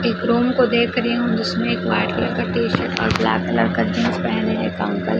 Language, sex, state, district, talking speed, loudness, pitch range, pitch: Hindi, male, Chhattisgarh, Raipur, 255 wpm, -19 LUFS, 230-240 Hz, 235 Hz